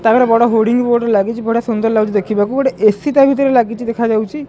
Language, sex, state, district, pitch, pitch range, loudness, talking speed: Odia, male, Odisha, Khordha, 230 Hz, 220-245 Hz, -14 LUFS, 215 wpm